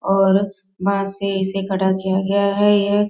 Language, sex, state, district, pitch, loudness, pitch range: Hindi, female, Bihar, East Champaran, 195 Hz, -19 LUFS, 190-200 Hz